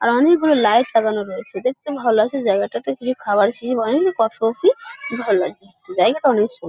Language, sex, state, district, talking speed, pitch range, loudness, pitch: Bengali, male, West Bengal, Kolkata, 190 wpm, 205-270 Hz, -18 LUFS, 230 Hz